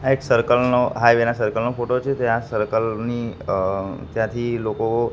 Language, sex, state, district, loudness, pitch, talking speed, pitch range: Gujarati, male, Gujarat, Gandhinagar, -21 LUFS, 115 Hz, 185 wpm, 110-120 Hz